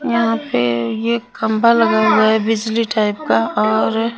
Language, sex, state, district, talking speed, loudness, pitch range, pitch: Hindi, female, Punjab, Kapurthala, 170 wpm, -16 LUFS, 215-230 Hz, 220 Hz